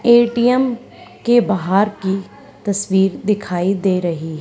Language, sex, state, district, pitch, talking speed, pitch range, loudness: Hindi, female, Haryana, Charkhi Dadri, 200 Hz, 110 wpm, 190-240 Hz, -17 LUFS